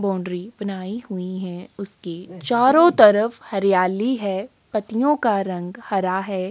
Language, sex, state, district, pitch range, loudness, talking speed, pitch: Hindi, female, Uttarakhand, Tehri Garhwal, 185-225 Hz, -20 LUFS, 130 wpm, 195 Hz